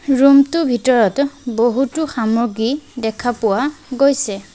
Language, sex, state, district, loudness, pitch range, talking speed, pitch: Assamese, female, Assam, Sonitpur, -16 LUFS, 230-275 Hz, 90 wpm, 255 Hz